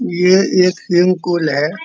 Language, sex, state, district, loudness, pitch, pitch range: Hindi, male, Uttar Pradesh, Muzaffarnagar, -14 LUFS, 180 Hz, 175-185 Hz